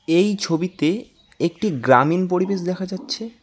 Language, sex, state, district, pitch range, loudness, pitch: Bengali, male, West Bengal, Alipurduar, 170-200 Hz, -21 LUFS, 185 Hz